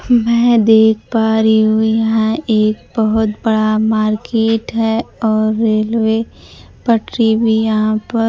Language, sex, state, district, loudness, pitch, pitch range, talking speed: Hindi, female, Bihar, Kaimur, -14 LUFS, 220 Hz, 220-225 Hz, 125 wpm